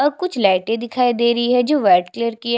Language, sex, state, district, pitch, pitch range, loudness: Hindi, female, Chhattisgarh, Jashpur, 235 Hz, 230-250 Hz, -17 LUFS